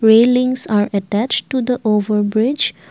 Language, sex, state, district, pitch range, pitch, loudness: English, female, Assam, Kamrup Metropolitan, 210-250 Hz, 220 Hz, -15 LUFS